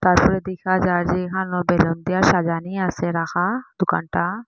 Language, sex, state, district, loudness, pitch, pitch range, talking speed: Bengali, female, Assam, Hailakandi, -21 LUFS, 180 Hz, 175-185 Hz, 160 wpm